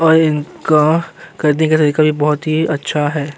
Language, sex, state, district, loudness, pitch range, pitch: Hindi, male, Uttar Pradesh, Jyotiba Phule Nagar, -15 LUFS, 150-160 Hz, 155 Hz